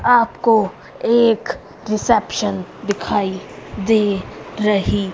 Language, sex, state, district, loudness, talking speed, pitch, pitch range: Hindi, female, Haryana, Rohtak, -18 LUFS, 80 wpm, 215 Hz, 200-230 Hz